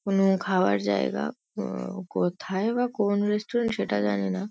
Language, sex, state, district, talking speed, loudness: Bengali, female, West Bengal, Kolkata, 160 wpm, -26 LUFS